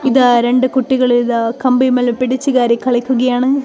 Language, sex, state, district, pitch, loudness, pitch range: Malayalam, female, Kerala, Kozhikode, 255 Hz, -14 LUFS, 245-260 Hz